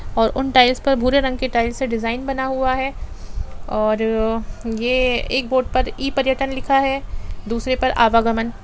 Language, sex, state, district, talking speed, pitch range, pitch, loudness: Hindi, female, Jharkhand, Jamtara, 175 wpm, 230-265 Hz, 255 Hz, -19 LUFS